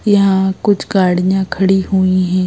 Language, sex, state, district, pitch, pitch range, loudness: Hindi, female, Madhya Pradesh, Bhopal, 190 Hz, 185-195 Hz, -14 LUFS